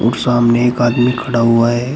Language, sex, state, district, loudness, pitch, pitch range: Hindi, male, Uttar Pradesh, Shamli, -13 LUFS, 120 Hz, 120-125 Hz